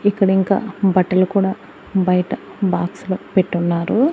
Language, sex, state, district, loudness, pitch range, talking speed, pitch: Telugu, female, Andhra Pradesh, Annamaya, -18 LUFS, 185-200 Hz, 100 wpm, 190 Hz